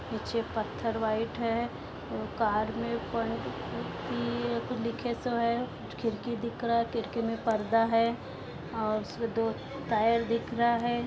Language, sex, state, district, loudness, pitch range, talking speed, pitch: Hindi, female, Uttar Pradesh, Etah, -31 LUFS, 220-235 Hz, 135 wpm, 230 Hz